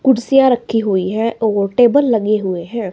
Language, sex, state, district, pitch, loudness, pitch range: Hindi, female, Himachal Pradesh, Shimla, 225 Hz, -15 LUFS, 205-245 Hz